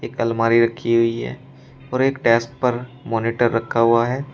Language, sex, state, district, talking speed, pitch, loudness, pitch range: Hindi, male, Uttar Pradesh, Shamli, 165 wpm, 115 Hz, -19 LUFS, 115-125 Hz